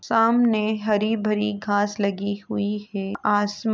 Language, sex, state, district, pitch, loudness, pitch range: Hindi, female, Uttar Pradesh, Etah, 210 Hz, -23 LUFS, 205-220 Hz